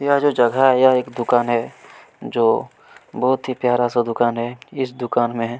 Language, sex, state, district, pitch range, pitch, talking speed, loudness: Hindi, male, Chhattisgarh, Kabirdham, 120-130 Hz, 120 Hz, 180 wpm, -19 LUFS